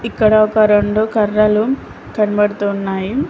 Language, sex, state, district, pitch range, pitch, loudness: Telugu, female, Telangana, Mahabubabad, 205-220 Hz, 215 Hz, -15 LUFS